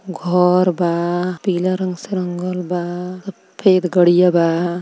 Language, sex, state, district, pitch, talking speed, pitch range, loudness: Bhojpuri, female, Uttar Pradesh, Ghazipur, 180 Hz, 125 wpm, 175-185 Hz, -17 LUFS